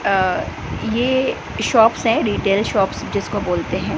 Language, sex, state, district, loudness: Hindi, female, Gujarat, Gandhinagar, -19 LUFS